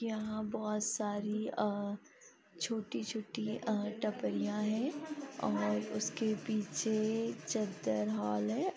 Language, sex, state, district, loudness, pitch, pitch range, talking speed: Hindi, female, Bihar, East Champaran, -36 LUFS, 215 Hz, 195-220 Hz, 95 wpm